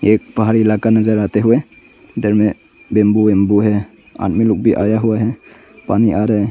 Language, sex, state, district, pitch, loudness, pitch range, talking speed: Hindi, male, Arunachal Pradesh, Longding, 110 Hz, -15 LUFS, 105-110 Hz, 195 wpm